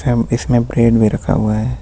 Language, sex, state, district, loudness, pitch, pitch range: Hindi, male, Jharkhand, Ranchi, -15 LUFS, 115 Hz, 115-125 Hz